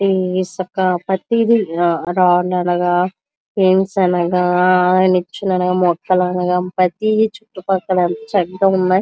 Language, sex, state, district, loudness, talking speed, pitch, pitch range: Telugu, female, Andhra Pradesh, Visakhapatnam, -16 LUFS, 95 wpm, 185 Hz, 180-190 Hz